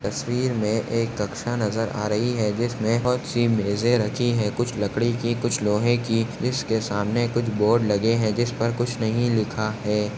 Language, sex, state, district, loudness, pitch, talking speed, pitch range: Hindi, male, Maharashtra, Nagpur, -23 LUFS, 115 Hz, 185 wpm, 105-120 Hz